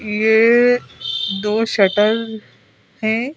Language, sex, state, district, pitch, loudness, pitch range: Hindi, female, Madhya Pradesh, Bhopal, 220 Hz, -16 LUFS, 205-225 Hz